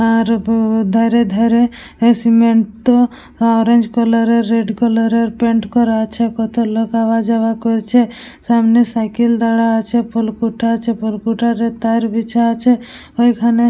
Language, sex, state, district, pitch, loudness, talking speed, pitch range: Bengali, female, West Bengal, Purulia, 230 Hz, -14 LUFS, 140 wpm, 225-235 Hz